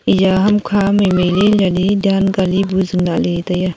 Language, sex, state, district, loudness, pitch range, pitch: Wancho, female, Arunachal Pradesh, Longding, -14 LUFS, 180-200 Hz, 190 Hz